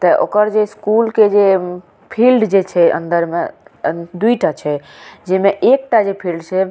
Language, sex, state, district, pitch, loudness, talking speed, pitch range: Maithili, female, Bihar, Madhepura, 195 Hz, -15 LUFS, 195 wpm, 175-215 Hz